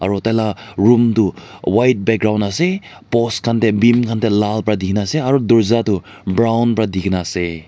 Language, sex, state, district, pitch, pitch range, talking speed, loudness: Nagamese, male, Nagaland, Dimapur, 110 Hz, 100-115 Hz, 190 wpm, -16 LUFS